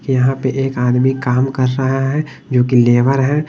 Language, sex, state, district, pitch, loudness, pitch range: Hindi, male, Bihar, Patna, 130 Hz, -15 LUFS, 125-135 Hz